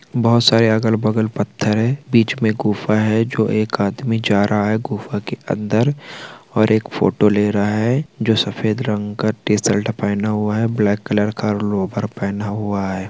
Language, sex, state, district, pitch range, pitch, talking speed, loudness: Hindi, male, Uttarakhand, Tehri Garhwal, 105-115 Hz, 110 Hz, 180 wpm, -18 LUFS